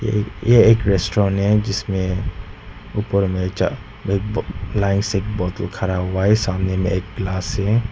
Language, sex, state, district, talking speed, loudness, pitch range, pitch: Hindi, male, Nagaland, Dimapur, 145 wpm, -20 LUFS, 95-105 Hz, 100 Hz